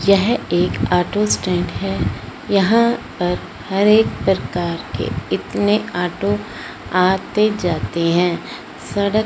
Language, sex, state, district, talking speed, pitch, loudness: Hindi, female, Punjab, Fazilka, 110 wpm, 180 Hz, -18 LUFS